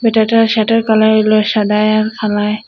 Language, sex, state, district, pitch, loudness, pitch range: Bengali, female, Assam, Hailakandi, 215 Hz, -12 LUFS, 215-220 Hz